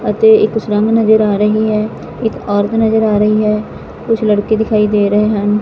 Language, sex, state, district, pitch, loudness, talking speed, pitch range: Punjabi, female, Punjab, Fazilka, 215 Hz, -13 LUFS, 200 wpm, 210-220 Hz